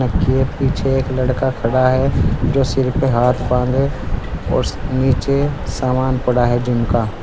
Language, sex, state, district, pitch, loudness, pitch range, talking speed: Hindi, male, Uttar Pradesh, Saharanpur, 130 Hz, -17 LUFS, 120-130 Hz, 150 wpm